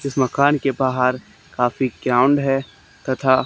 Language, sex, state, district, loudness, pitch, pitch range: Hindi, male, Haryana, Charkhi Dadri, -19 LUFS, 130 Hz, 125-135 Hz